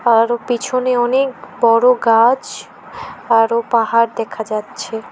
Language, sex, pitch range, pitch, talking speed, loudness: Bengali, female, 225-255 Hz, 235 Hz, 105 wpm, -15 LUFS